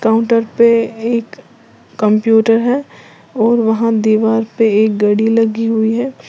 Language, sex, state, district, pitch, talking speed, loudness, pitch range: Hindi, female, Uttar Pradesh, Lalitpur, 225 Hz, 135 wpm, -13 LUFS, 220-230 Hz